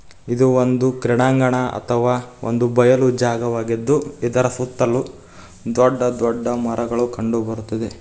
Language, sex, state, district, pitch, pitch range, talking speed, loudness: Kannada, male, Karnataka, Koppal, 120 Hz, 115-125 Hz, 95 wpm, -19 LUFS